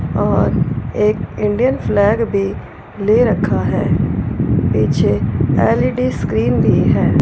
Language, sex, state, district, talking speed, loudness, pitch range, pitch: Hindi, female, Punjab, Fazilka, 110 wpm, -16 LUFS, 125-210 Hz, 200 Hz